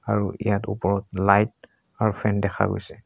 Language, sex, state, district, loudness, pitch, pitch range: Assamese, male, Assam, Sonitpur, -24 LUFS, 100 Hz, 100-110 Hz